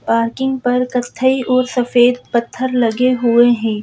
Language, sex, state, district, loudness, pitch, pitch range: Hindi, female, Madhya Pradesh, Bhopal, -15 LUFS, 245 Hz, 235-255 Hz